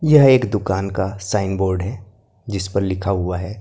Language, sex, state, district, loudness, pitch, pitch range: Hindi, male, Maharashtra, Gondia, -19 LUFS, 100 Hz, 95-105 Hz